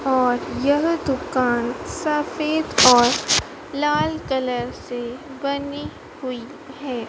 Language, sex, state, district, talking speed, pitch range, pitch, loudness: Hindi, female, Madhya Pradesh, Dhar, 95 wpm, 250-295 Hz, 270 Hz, -21 LUFS